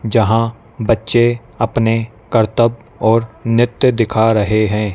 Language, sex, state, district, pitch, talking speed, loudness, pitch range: Hindi, male, Madhya Pradesh, Dhar, 115 Hz, 110 wpm, -15 LUFS, 110-115 Hz